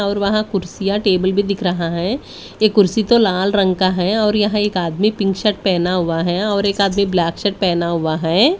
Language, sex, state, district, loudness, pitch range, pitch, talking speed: Hindi, female, Delhi, New Delhi, -17 LUFS, 180-210 Hz, 195 Hz, 225 wpm